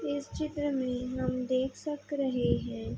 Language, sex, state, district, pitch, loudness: Hindi, female, Uttar Pradesh, Budaun, 255 Hz, -32 LUFS